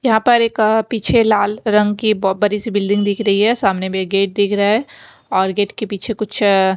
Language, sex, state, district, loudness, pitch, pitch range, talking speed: Hindi, female, Maharashtra, Mumbai Suburban, -16 LUFS, 210 Hz, 200-220 Hz, 195 wpm